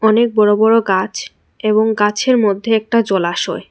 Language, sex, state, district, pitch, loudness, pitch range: Bengali, female, Tripura, West Tripura, 220 Hz, -15 LUFS, 210-230 Hz